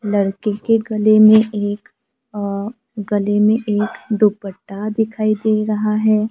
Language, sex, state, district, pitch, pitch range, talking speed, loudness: Hindi, female, Maharashtra, Gondia, 215 Hz, 205-220 Hz, 135 wpm, -17 LUFS